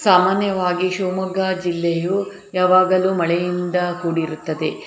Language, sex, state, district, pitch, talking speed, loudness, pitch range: Kannada, female, Karnataka, Shimoga, 185 Hz, 75 wpm, -19 LUFS, 175-190 Hz